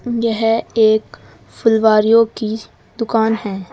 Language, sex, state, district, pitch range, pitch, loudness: Hindi, female, Uttar Pradesh, Saharanpur, 215-230 Hz, 225 Hz, -16 LUFS